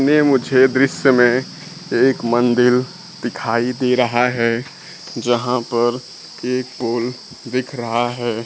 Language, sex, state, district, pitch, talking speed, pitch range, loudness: Hindi, male, Bihar, Kaimur, 125 Hz, 120 wpm, 120-135 Hz, -18 LUFS